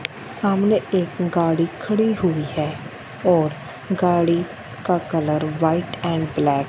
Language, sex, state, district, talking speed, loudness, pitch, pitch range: Hindi, female, Punjab, Fazilka, 125 wpm, -21 LUFS, 170 Hz, 155-180 Hz